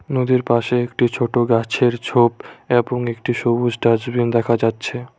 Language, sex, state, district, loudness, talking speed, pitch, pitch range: Bengali, male, West Bengal, Cooch Behar, -18 LUFS, 140 wpm, 120 Hz, 115-125 Hz